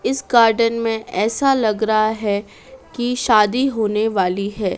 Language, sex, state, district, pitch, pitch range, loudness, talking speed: Hindi, female, Madhya Pradesh, Dhar, 220 Hz, 210-240 Hz, -18 LUFS, 150 wpm